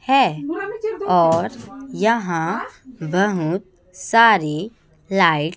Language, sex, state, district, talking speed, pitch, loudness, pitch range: Hindi, female, Chhattisgarh, Raipur, 75 wpm, 200 Hz, -19 LUFS, 170-255 Hz